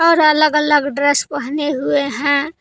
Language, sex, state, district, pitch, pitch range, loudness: Hindi, female, Jharkhand, Palamu, 290 Hz, 285-300 Hz, -15 LUFS